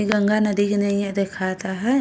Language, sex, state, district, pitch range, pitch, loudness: Bhojpuri, female, Uttar Pradesh, Ghazipur, 195-210 Hz, 205 Hz, -21 LUFS